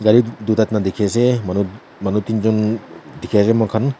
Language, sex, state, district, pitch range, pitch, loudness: Nagamese, male, Nagaland, Kohima, 105-115 Hz, 110 Hz, -18 LUFS